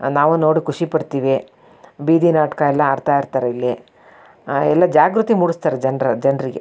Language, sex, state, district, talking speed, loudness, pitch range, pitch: Kannada, female, Karnataka, Shimoga, 155 wpm, -17 LUFS, 135-160 Hz, 145 Hz